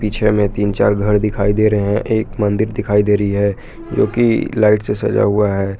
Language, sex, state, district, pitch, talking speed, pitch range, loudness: Hindi, male, Jharkhand, Palamu, 105 Hz, 225 wpm, 100-105 Hz, -16 LUFS